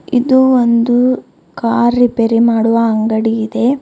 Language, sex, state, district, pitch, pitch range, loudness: Kannada, female, Karnataka, Bidar, 235 Hz, 230-245 Hz, -13 LUFS